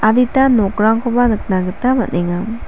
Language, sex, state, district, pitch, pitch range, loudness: Garo, female, Meghalaya, South Garo Hills, 225 Hz, 200-245 Hz, -15 LUFS